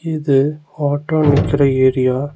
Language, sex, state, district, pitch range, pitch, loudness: Tamil, male, Tamil Nadu, Nilgiris, 135-150 Hz, 145 Hz, -16 LUFS